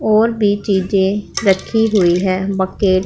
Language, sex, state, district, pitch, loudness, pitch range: Hindi, female, Punjab, Pathankot, 195 Hz, -15 LUFS, 190-215 Hz